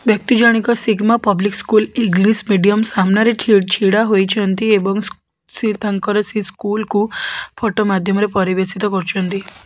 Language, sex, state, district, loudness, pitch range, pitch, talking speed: Odia, female, Odisha, Khordha, -16 LUFS, 195-220 Hz, 210 Hz, 130 wpm